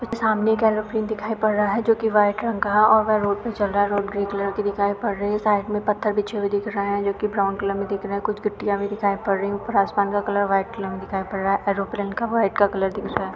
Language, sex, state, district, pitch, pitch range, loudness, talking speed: Hindi, female, Uttar Pradesh, Budaun, 205 Hz, 200-215 Hz, -22 LUFS, 315 wpm